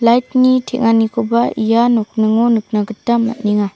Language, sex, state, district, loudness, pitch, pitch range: Garo, female, Meghalaya, South Garo Hills, -15 LUFS, 230 Hz, 220-235 Hz